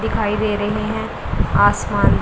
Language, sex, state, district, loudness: Hindi, female, Punjab, Pathankot, -19 LUFS